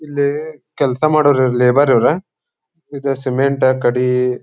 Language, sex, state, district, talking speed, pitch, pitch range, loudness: Kannada, male, Karnataka, Dharwad, 120 wpm, 135 Hz, 125-145 Hz, -15 LUFS